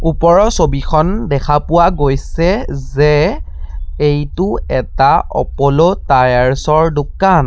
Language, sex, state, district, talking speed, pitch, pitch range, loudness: Assamese, male, Assam, Sonitpur, 90 wpm, 150 Hz, 140-170 Hz, -13 LUFS